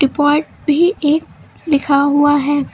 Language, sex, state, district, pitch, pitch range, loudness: Hindi, female, Uttar Pradesh, Lucknow, 290 Hz, 285-300 Hz, -15 LUFS